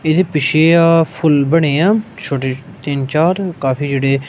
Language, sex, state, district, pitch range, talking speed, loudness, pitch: Punjabi, male, Punjab, Kapurthala, 140-170 Hz, 155 wpm, -14 LUFS, 155 Hz